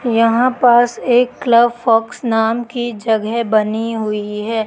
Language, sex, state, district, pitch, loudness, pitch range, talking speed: Hindi, female, Madhya Pradesh, Katni, 230 Hz, -15 LUFS, 220-240 Hz, 140 wpm